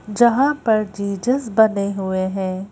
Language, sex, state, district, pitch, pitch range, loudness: Hindi, female, Madhya Pradesh, Bhopal, 205 Hz, 195-235 Hz, -19 LUFS